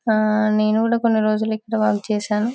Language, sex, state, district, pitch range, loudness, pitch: Telugu, female, Telangana, Karimnagar, 215-220 Hz, -19 LUFS, 215 Hz